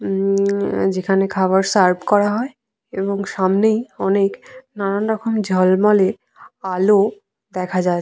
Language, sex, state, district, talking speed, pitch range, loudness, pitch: Bengali, female, West Bengal, Purulia, 110 wpm, 190-210 Hz, -18 LUFS, 200 Hz